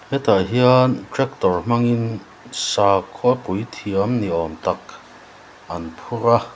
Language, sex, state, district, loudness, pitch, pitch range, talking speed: Mizo, male, Mizoram, Aizawl, -20 LUFS, 115 Hz, 95-120 Hz, 110 wpm